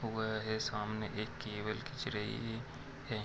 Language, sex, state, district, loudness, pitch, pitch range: Hindi, male, Bihar, Muzaffarpur, -40 LUFS, 110 Hz, 105-125 Hz